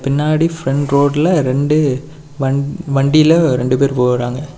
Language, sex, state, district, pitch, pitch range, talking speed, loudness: Tamil, male, Tamil Nadu, Kanyakumari, 140 Hz, 135-150 Hz, 120 wpm, -14 LUFS